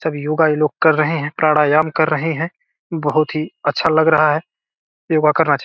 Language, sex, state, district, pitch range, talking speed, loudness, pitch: Hindi, male, Bihar, Gopalganj, 150-160 Hz, 225 wpm, -16 LUFS, 155 Hz